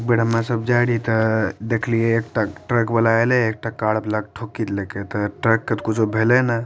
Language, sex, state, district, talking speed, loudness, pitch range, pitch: Maithili, male, Bihar, Madhepura, 235 wpm, -20 LUFS, 110-115 Hz, 115 Hz